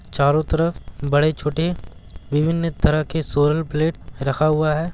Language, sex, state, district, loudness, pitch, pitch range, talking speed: Hindi, male, Bihar, Gaya, -20 LUFS, 150 Hz, 140-160 Hz, 135 wpm